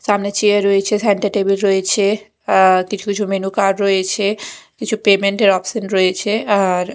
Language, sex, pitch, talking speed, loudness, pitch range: Bengali, female, 200 Hz, 155 wpm, -16 LUFS, 195-205 Hz